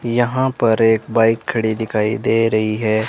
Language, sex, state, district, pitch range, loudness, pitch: Hindi, male, Rajasthan, Bikaner, 110-115 Hz, -17 LUFS, 115 Hz